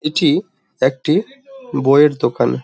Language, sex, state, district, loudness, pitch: Bengali, male, West Bengal, Dakshin Dinajpur, -16 LUFS, 150 Hz